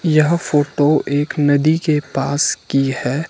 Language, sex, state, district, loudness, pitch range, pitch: Hindi, male, Himachal Pradesh, Shimla, -17 LUFS, 140-155 Hz, 145 Hz